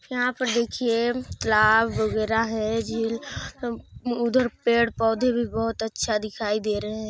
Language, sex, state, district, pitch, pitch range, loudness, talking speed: Hindi, female, Chhattisgarh, Sarguja, 225 Hz, 220-240 Hz, -24 LUFS, 160 wpm